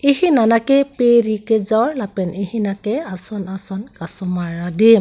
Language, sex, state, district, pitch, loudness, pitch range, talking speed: Karbi, female, Assam, Karbi Anglong, 220 Hz, -18 LUFS, 190-235 Hz, 155 wpm